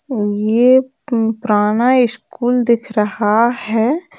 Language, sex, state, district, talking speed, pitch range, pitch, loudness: Hindi, female, Bihar, Jamui, 85 wpm, 215-250 Hz, 235 Hz, -15 LUFS